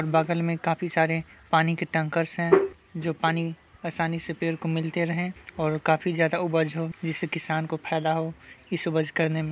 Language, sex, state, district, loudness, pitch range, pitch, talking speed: Hindi, male, Bihar, Sitamarhi, -26 LUFS, 160-170 Hz, 165 Hz, 190 wpm